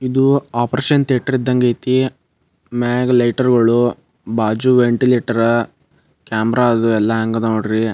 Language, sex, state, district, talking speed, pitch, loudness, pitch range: Kannada, male, Karnataka, Bijapur, 120 wpm, 120 Hz, -16 LUFS, 115-125 Hz